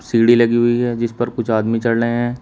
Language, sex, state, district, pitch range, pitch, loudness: Hindi, male, Uttar Pradesh, Shamli, 115-120 Hz, 120 Hz, -16 LUFS